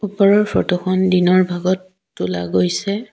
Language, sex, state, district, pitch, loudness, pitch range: Assamese, female, Assam, Sonitpur, 185 Hz, -17 LUFS, 180-200 Hz